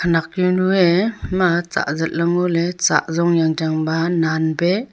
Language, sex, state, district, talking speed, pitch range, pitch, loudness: Wancho, female, Arunachal Pradesh, Longding, 185 wpm, 160-180 Hz, 170 Hz, -18 LUFS